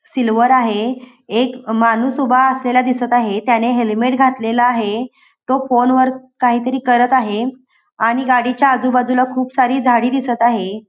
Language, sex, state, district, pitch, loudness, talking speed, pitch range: Marathi, female, Goa, North and South Goa, 250 Hz, -15 LUFS, 145 wpm, 235-260 Hz